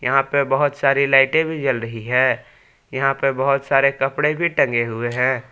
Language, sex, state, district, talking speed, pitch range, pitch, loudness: Hindi, male, Jharkhand, Palamu, 195 wpm, 130-140 Hz, 135 Hz, -18 LUFS